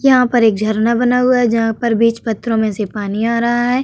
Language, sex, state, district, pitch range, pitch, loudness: Hindi, female, Uttar Pradesh, Hamirpur, 220-245 Hz, 230 Hz, -15 LUFS